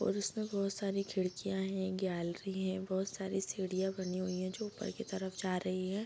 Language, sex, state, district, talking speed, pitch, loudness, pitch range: Hindi, female, Bihar, Bhagalpur, 220 wpm, 190 Hz, -38 LUFS, 185-195 Hz